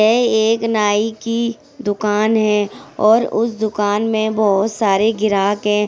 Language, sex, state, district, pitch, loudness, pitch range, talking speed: Hindi, female, Uttar Pradesh, Etah, 215 Hz, -17 LUFS, 210-225 Hz, 145 wpm